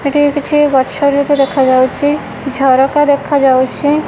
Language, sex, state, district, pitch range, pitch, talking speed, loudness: Odia, female, Odisha, Khordha, 265-290 Hz, 280 Hz, 120 wpm, -12 LUFS